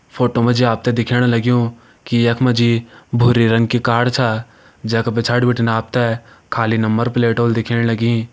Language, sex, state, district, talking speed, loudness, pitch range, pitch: Hindi, male, Uttarakhand, Uttarkashi, 200 wpm, -16 LUFS, 115-120 Hz, 115 Hz